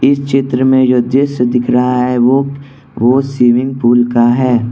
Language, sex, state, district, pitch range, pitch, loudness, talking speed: Hindi, male, Arunachal Pradesh, Lower Dibang Valley, 120-135 Hz, 125 Hz, -12 LUFS, 180 wpm